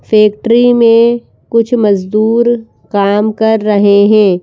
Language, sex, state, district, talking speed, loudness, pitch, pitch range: Hindi, female, Madhya Pradesh, Bhopal, 110 wpm, -10 LUFS, 220 Hz, 205-230 Hz